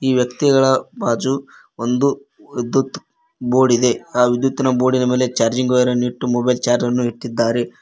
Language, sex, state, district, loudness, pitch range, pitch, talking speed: Kannada, male, Karnataka, Koppal, -18 LUFS, 120-130 Hz, 125 Hz, 140 wpm